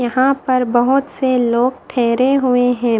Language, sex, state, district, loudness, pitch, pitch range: Hindi, female, Haryana, Jhajjar, -15 LUFS, 250 Hz, 245-260 Hz